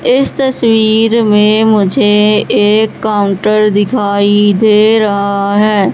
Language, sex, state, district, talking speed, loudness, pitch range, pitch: Hindi, female, Madhya Pradesh, Katni, 90 wpm, -10 LUFS, 205-220 Hz, 210 Hz